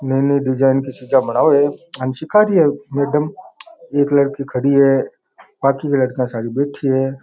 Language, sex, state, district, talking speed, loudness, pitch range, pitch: Rajasthani, male, Rajasthan, Nagaur, 175 wpm, -17 LUFS, 130-145 Hz, 140 Hz